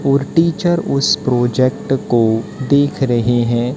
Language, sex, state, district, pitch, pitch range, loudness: Hindi, male, Haryana, Jhajjar, 130 Hz, 120-145 Hz, -15 LUFS